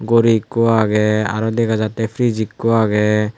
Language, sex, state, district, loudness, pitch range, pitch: Chakma, male, Tripura, Unakoti, -16 LUFS, 105-115 Hz, 110 Hz